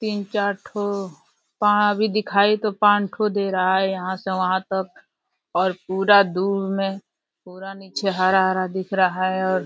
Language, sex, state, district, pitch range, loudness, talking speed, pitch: Hindi, male, Uttar Pradesh, Deoria, 185-205 Hz, -21 LUFS, 175 wpm, 195 Hz